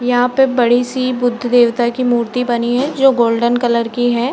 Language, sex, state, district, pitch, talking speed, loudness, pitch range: Hindi, female, Uttar Pradesh, Varanasi, 245 Hz, 195 wpm, -14 LUFS, 240-250 Hz